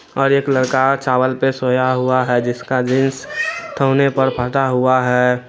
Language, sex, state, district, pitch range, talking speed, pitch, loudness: Hindi, male, Bihar, Araria, 125-135 Hz, 175 wpm, 130 Hz, -16 LUFS